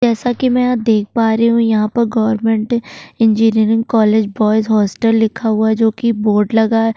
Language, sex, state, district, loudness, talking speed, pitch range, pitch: Hindi, female, Chhattisgarh, Bastar, -14 LUFS, 190 wpm, 220-230 Hz, 225 Hz